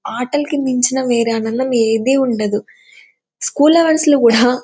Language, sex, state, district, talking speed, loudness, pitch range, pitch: Telugu, female, Andhra Pradesh, Anantapur, 115 wpm, -15 LUFS, 230-285 Hz, 250 Hz